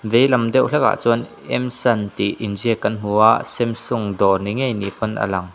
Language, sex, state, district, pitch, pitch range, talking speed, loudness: Mizo, male, Mizoram, Aizawl, 110 Hz, 100-120 Hz, 215 wpm, -19 LUFS